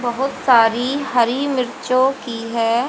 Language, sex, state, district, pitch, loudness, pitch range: Hindi, female, Haryana, Jhajjar, 250 Hz, -18 LUFS, 235-270 Hz